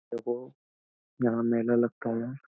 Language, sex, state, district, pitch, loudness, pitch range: Hindi, male, Uttar Pradesh, Jyotiba Phule Nagar, 115 Hz, -29 LUFS, 115-120 Hz